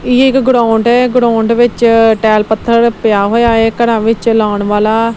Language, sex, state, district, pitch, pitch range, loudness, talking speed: Punjabi, female, Punjab, Kapurthala, 230 Hz, 220-235 Hz, -10 LUFS, 175 wpm